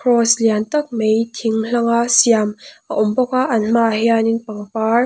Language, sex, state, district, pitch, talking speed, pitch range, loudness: Mizo, female, Mizoram, Aizawl, 230 Hz, 190 wpm, 220-240 Hz, -16 LUFS